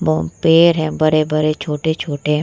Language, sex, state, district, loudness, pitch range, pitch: Hindi, female, Bihar, Vaishali, -16 LUFS, 150-160 Hz, 155 Hz